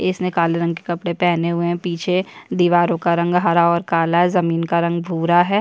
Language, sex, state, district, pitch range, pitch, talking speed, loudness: Hindi, female, Chhattisgarh, Bastar, 170-175 Hz, 170 Hz, 225 wpm, -18 LUFS